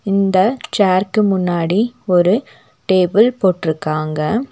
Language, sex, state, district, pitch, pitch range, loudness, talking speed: Tamil, female, Tamil Nadu, Nilgiris, 190 Hz, 180-215 Hz, -16 LUFS, 80 wpm